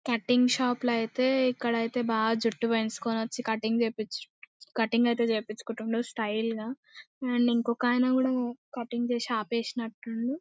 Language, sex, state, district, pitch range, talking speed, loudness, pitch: Telugu, female, Andhra Pradesh, Anantapur, 225-245 Hz, 140 wpm, -29 LUFS, 235 Hz